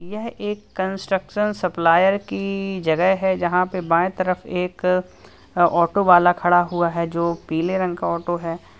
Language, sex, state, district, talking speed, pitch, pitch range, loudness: Hindi, male, Uttar Pradesh, Lalitpur, 155 wpm, 180 Hz, 170-190 Hz, -20 LUFS